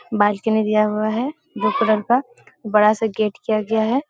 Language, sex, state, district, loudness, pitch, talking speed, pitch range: Hindi, female, Bihar, Supaul, -19 LUFS, 220 Hz, 190 wpm, 215-240 Hz